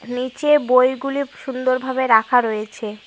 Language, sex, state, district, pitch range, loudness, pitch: Bengali, female, West Bengal, Cooch Behar, 230-260 Hz, -18 LUFS, 255 Hz